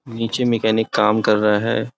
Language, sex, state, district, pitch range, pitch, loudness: Hindi, male, Chhattisgarh, Raigarh, 105-115 Hz, 110 Hz, -18 LUFS